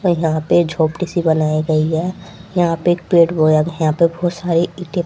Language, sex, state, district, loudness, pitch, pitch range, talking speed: Hindi, female, Haryana, Rohtak, -16 LUFS, 170 Hz, 160-175 Hz, 215 wpm